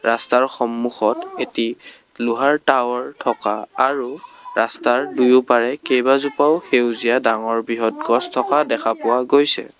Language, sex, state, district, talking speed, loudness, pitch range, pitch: Assamese, male, Assam, Kamrup Metropolitan, 110 wpm, -18 LUFS, 115-140 Hz, 125 Hz